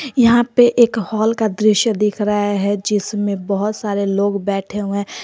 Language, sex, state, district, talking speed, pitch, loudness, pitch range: Hindi, female, Jharkhand, Garhwa, 185 wpm, 210 Hz, -17 LUFS, 200-220 Hz